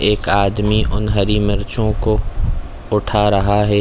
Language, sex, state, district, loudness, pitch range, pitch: Hindi, male, Chhattisgarh, Korba, -17 LUFS, 100-105 Hz, 105 Hz